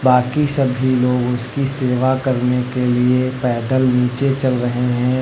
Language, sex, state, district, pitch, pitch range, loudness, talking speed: Hindi, male, Uttar Pradesh, Lucknow, 125 Hz, 125-130 Hz, -17 LUFS, 150 wpm